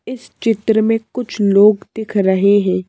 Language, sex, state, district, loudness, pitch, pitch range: Hindi, female, Madhya Pradesh, Bhopal, -15 LUFS, 215 Hz, 200-225 Hz